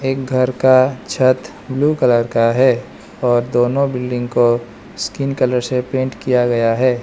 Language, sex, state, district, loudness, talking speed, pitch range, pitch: Hindi, male, Arunachal Pradesh, Lower Dibang Valley, -16 LUFS, 160 wpm, 120-130 Hz, 125 Hz